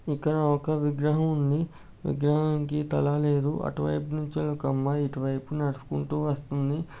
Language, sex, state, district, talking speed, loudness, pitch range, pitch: Telugu, male, Andhra Pradesh, Guntur, 145 wpm, -28 LUFS, 140-150 Hz, 145 Hz